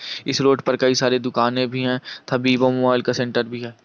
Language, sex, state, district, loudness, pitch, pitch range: Hindi, male, Andhra Pradesh, Krishna, -20 LUFS, 125 Hz, 125-130 Hz